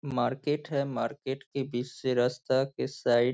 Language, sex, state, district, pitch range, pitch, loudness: Hindi, male, Bihar, Saharsa, 125-140 Hz, 130 Hz, -30 LUFS